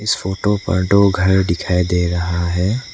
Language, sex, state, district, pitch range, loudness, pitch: Hindi, male, Arunachal Pradesh, Lower Dibang Valley, 90-100 Hz, -17 LUFS, 95 Hz